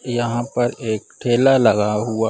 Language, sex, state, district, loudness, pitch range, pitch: Hindi, male, Chhattisgarh, Bilaspur, -18 LUFS, 110-120 Hz, 120 Hz